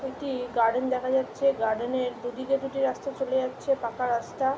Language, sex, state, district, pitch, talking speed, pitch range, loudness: Bengali, female, West Bengal, Jhargram, 260 Hz, 170 wpm, 245-270 Hz, -28 LUFS